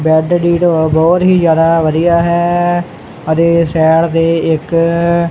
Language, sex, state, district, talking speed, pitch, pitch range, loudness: Punjabi, male, Punjab, Kapurthala, 145 wpm, 165 Hz, 160-170 Hz, -11 LUFS